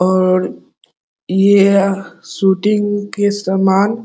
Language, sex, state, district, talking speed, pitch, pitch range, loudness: Hindi, male, Bihar, Muzaffarpur, 90 wpm, 195 Hz, 190-205 Hz, -14 LUFS